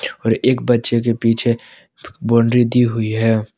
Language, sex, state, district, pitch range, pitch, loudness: Hindi, male, Jharkhand, Palamu, 115-120 Hz, 115 Hz, -16 LUFS